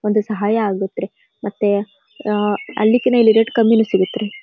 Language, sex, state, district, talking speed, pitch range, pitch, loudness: Kannada, female, Karnataka, Dharwad, 175 wpm, 205-225 Hz, 210 Hz, -17 LUFS